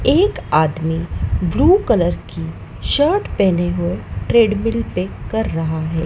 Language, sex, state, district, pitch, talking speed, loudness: Hindi, female, Madhya Pradesh, Dhar, 160 Hz, 130 wpm, -18 LUFS